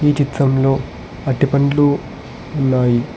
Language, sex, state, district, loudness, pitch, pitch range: Telugu, male, Telangana, Hyderabad, -17 LUFS, 140 Hz, 130-145 Hz